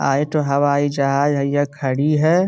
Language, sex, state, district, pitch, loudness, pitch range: Bhojpuri, male, Uttar Pradesh, Gorakhpur, 145 Hz, -18 LUFS, 140-150 Hz